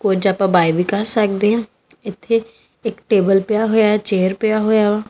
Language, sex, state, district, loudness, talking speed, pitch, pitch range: Punjabi, female, Punjab, Kapurthala, -17 LUFS, 200 wpm, 210 Hz, 195-220 Hz